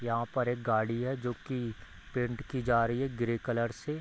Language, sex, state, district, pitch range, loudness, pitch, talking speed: Hindi, male, Bihar, Gopalganj, 115-125 Hz, -33 LUFS, 120 Hz, 240 wpm